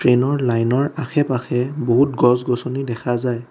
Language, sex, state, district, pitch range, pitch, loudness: Assamese, male, Assam, Kamrup Metropolitan, 120-135 Hz, 125 Hz, -19 LUFS